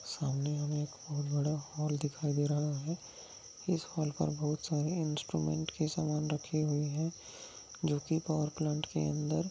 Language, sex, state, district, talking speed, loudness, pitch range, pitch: Hindi, male, Maharashtra, Nagpur, 170 wpm, -35 LUFS, 145-155 Hz, 150 Hz